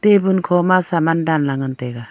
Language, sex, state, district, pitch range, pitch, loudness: Wancho, female, Arunachal Pradesh, Longding, 135-185 Hz, 165 Hz, -17 LUFS